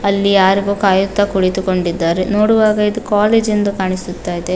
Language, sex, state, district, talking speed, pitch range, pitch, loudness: Kannada, female, Karnataka, Dakshina Kannada, 145 wpm, 185-210 Hz, 195 Hz, -14 LUFS